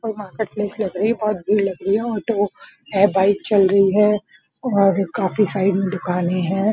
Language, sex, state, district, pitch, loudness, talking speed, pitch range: Hindi, female, Bihar, Purnia, 200 Hz, -19 LUFS, 195 wpm, 190-210 Hz